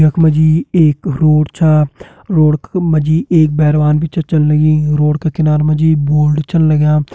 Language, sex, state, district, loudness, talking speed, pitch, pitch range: Hindi, male, Uttarakhand, Uttarkashi, -12 LUFS, 195 wpm, 155 Hz, 150-160 Hz